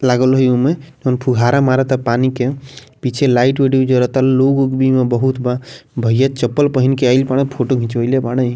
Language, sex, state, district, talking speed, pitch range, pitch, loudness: Bhojpuri, male, Bihar, Muzaffarpur, 175 wpm, 125-135 Hz, 130 Hz, -15 LUFS